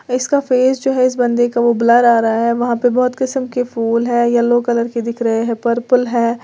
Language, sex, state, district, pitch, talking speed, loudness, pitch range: Hindi, female, Uttar Pradesh, Lalitpur, 240 Hz, 250 wpm, -15 LUFS, 235-250 Hz